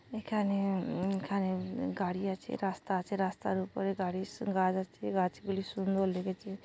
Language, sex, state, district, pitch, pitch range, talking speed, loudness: Bengali, female, West Bengal, Dakshin Dinajpur, 195 Hz, 185-195 Hz, 155 wpm, -34 LUFS